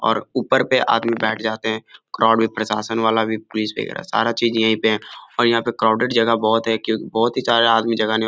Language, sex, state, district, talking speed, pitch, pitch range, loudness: Hindi, male, Bihar, Jahanabad, 245 wpm, 115 Hz, 110-115 Hz, -19 LUFS